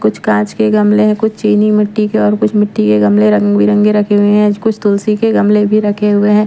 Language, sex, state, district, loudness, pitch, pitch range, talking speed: Hindi, female, Bihar, Patna, -11 LUFS, 210 Hz, 205-215 Hz, 240 wpm